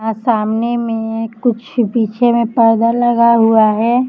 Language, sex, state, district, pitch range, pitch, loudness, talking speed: Hindi, female, Maharashtra, Chandrapur, 225-240 Hz, 230 Hz, -14 LUFS, 145 wpm